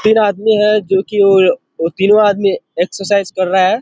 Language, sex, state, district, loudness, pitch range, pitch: Hindi, male, Bihar, Kishanganj, -13 LUFS, 190-215 Hz, 200 Hz